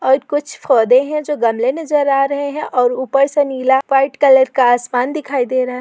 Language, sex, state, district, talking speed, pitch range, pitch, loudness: Hindi, female, Uttar Pradesh, Etah, 225 wpm, 255-285 Hz, 270 Hz, -15 LUFS